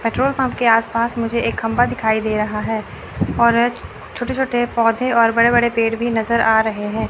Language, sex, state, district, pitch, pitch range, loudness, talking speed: Hindi, female, Chandigarh, Chandigarh, 230 Hz, 225-240 Hz, -17 LUFS, 220 wpm